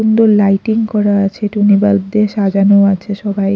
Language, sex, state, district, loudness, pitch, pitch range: Bengali, female, Odisha, Khordha, -12 LUFS, 205 Hz, 200-210 Hz